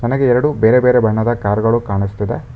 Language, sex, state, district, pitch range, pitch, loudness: Kannada, male, Karnataka, Bangalore, 105-125 Hz, 120 Hz, -15 LUFS